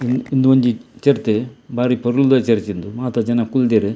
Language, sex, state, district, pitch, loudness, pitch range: Tulu, male, Karnataka, Dakshina Kannada, 120 Hz, -17 LUFS, 115-130 Hz